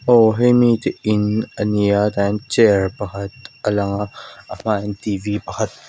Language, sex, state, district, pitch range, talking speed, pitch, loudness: Mizo, female, Mizoram, Aizawl, 100-110 Hz, 195 wpm, 105 Hz, -18 LUFS